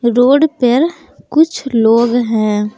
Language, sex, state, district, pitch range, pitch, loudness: Hindi, female, Jharkhand, Palamu, 225-290 Hz, 245 Hz, -13 LUFS